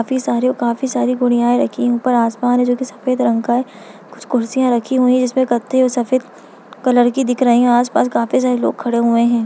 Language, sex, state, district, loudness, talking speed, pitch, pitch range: Hindi, female, Bihar, Lakhisarai, -16 LUFS, 235 wpm, 245 Hz, 235-255 Hz